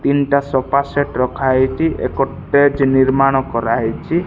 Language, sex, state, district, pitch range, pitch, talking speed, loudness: Odia, male, Odisha, Malkangiri, 130-140 Hz, 135 Hz, 110 wpm, -16 LUFS